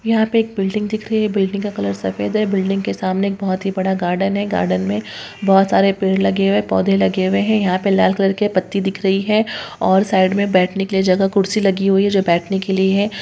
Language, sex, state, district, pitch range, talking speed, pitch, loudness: Hindi, female, Bihar, Saharsa, 185-200 Hz, 265 wpm, 195 Hz, -17 LUFS